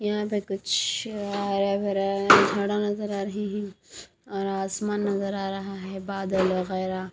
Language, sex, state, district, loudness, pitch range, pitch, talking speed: Hindi, female, Haryana, Rohtak, -26 LUFS, 195-205 Hz, 195 Hz, 150 wpm